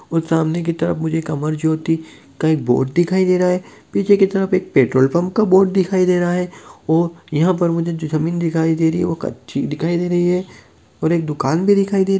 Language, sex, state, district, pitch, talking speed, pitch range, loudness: Hindi, male, Uttar Pradesh, Deoria, 170 Hz, 245 wpm, 160-185 Hz, -18 LUFS